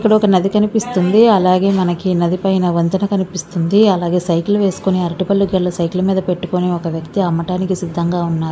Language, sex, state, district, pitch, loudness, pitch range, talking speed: Telugu, female, Andhra Pradesh, Visakhapatnam, 185 Hz, -15 LUFS, 175-195 Hz, 255 wpm